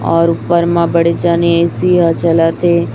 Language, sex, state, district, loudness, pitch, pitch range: Hindi, female, Chhattisgarh, Raipur, -12 LUFS, 170 Hz, 165-170 Hz